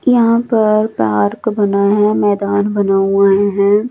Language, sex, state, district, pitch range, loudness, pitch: Hindi, female, Chandigarh, Chandigarh, 200-215 Hz, -13 LUFS, 205 Hz